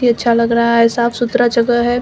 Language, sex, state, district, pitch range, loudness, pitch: Hindi, female, Bihar, Samastipur, 235-240 Hz, -14 LUFS, 235 Hz